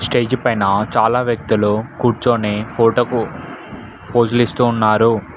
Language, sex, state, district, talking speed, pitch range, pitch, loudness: Telugu, male, Telangana, Mahabubabad, 100 wpm, 110-120 Hz, 115 Hz, -16 LUFS